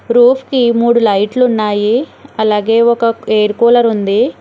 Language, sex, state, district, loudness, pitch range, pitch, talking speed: Telugu, female, Telangana, Hyderabad, -12 LUFS, 215-240 Hz, 230 Hz, 125 wpm